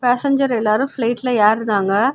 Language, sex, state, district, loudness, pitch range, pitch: Tamil, female, Tamil Nadu, Kanyakumari, -17 LUFS, 215-260 Hz, 235 Hz